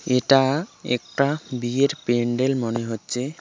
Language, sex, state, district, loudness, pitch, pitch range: Bengali, male, West Bengal, Cooch Behar, -22 LUFS, 125 Hz, 120-140 Hz